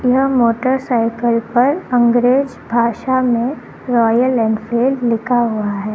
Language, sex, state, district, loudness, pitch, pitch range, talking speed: Hindi, female, Karnataka, Bangalore, -16 LUFS, 240 Hz, 230-255 Hz, 110 wpm